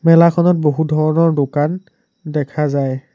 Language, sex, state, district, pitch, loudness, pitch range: Assamese, male, Assam, Sonitpur, 155 Hz, -16 LUFS, 145-170 Hz